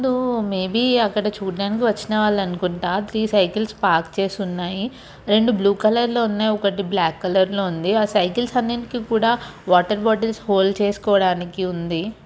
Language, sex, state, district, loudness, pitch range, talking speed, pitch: Telugu, female, Andhra Pradesh, Chittoor, -20 LUFS, 190-225 Hz, 140 wpm, 205 Hz